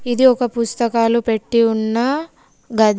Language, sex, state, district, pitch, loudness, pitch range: Telugu, female, Telangana, Komaram Bheem, 235 Hz, -17 LUFS, 225-245 Hz